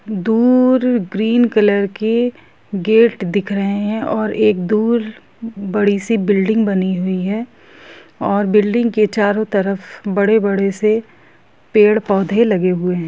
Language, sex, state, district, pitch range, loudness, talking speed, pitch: Hindi, female, Jharkhand, Jamtara, 200-225 Hz, -16 LUFS, 130 wpm, 210 Hz